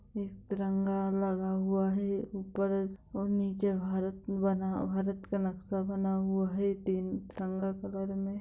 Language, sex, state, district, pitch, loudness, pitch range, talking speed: Hindi, female, Bihar, Madhepura, 195 Hz, -33 LUFS, 190-195 Hz, 140 wpm